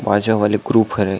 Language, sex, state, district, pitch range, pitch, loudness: Chhattisgarhi, male, Chhattisgarh, Sukma, 105-110 Hz, 105 Hz, -16 LUFS